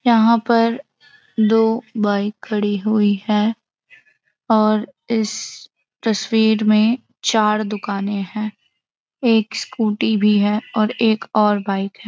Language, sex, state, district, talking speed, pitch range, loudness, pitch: Hindi, female, Uttarakhand, Uttarkashi, 115 wpm, 210-230 Hz, -18 LUFS, 220 Hz